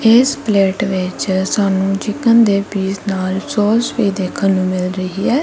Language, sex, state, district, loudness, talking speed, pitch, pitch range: Punjabi, female, Punjab, Kapurthala, -16 LUFS, 165 wpm, 195 Hz, 190-220 Hz